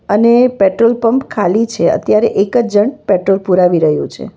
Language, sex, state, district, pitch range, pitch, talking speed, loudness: Gujarati, female, Gujarat, Valsad, 190-235 Hz, 205 Hz, 165 wpm, -12 LUFS